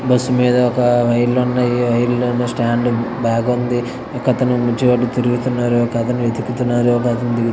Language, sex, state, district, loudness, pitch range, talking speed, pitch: Telugu, male, Andhra Pradesh, Visakhapatnam, -17 LUFS, 120-125 Hz, 55 wpm, 120 Hz